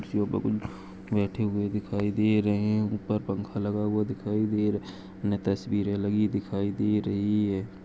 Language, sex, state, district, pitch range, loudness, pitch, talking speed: Hindi, male, Chhattisgarh, Sarguja, 100-105 Hz, -28 LUFS, 105 Hz, 135 wpm